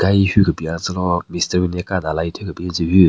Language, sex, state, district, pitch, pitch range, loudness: Rengma, male, Nagaland, Kohima, 90 Hz, 85-95 Hz, -19 LUFS